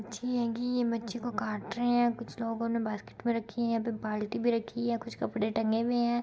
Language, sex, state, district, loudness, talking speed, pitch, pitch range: Hindi, female, Uttar Pradesh, Muzaffarnagar, -32 LUFS, 270 wpm, 230 Hz, 225-240 Hz